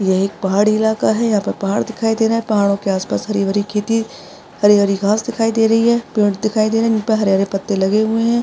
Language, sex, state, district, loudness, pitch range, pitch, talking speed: Hindi, female, Maharashtra, Aurangabad, -16 LUFS, 200-225 Hz, 215 Hz, 255 wpm